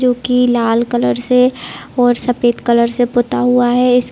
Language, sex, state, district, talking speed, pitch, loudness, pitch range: Hindi, female, Bihar, East Champaran, 205 wpm, 245 Hz, -14 LUFS, 240-250 Hz